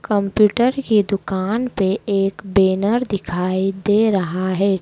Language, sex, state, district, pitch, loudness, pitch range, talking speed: Hindi, female, Madhya Pradesh, Dhar, 200 Hz, -18 LUFS, 190-210 Hz, 125 wpm